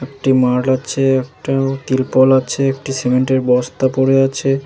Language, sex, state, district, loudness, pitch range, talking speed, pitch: Bengali, male, West Bengal, Jalpaiguri, -15 LUFS, 130-135 Hz, 140 wpm, 130 Hz